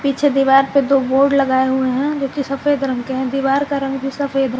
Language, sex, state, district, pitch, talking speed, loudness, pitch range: Hindi, female, Jharkhand, Garhwa, 275 Hz, 260 wpm, -17 LUFS, 265-280 Hz